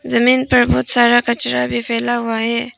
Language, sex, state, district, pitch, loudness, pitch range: Hindi, female, Arunachal Pradesh, Papum Pare, 235 Hz, -14 LUFS, 230-240 Hz